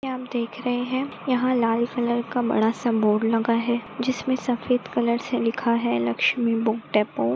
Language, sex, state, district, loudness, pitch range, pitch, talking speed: Hindi, female, Maharashtra, Pune, -24 LUFS, 230-250 Hz, 235 Hz, 190 wpm